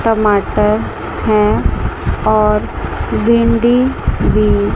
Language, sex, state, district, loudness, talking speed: Hindi, male, Chandigarh, Chandigarh, -14 LUFS, 65 wpm